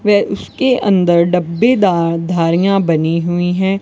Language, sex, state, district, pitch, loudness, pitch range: Hindi, female, Rajasthan, Bikaner, 180 Hz, -14 LUFS, 170-200 Hz